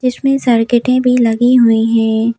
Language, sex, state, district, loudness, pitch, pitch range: Hindi, female, Madhya Pradesh, Bhopal, -12 LUFS, 240 Hz, 225-250 Hz